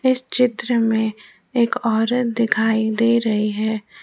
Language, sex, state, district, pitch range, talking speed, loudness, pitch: Hindi, female, Jharkhand, Ranchi, 220-240 Hz, 135 wpm, -19 LUFS, 230 Hz